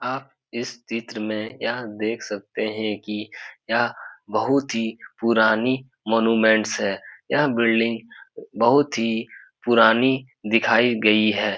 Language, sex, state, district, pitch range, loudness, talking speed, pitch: Hindi, male, Bihar, Supaul, 110-120 Hz, -22 LUFS, 120 wpm, 115 Hz